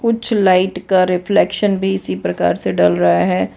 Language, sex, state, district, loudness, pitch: Hindi, female, Gujarat, Valsad, -15 LUFS, 180 Hz